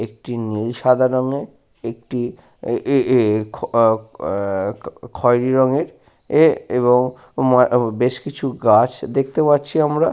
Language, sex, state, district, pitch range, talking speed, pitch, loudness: Bengali, male, West Bengal, Paschim Medinipur, 115-135 Hz, 95 wpm, 125 Hz, -18 LUFS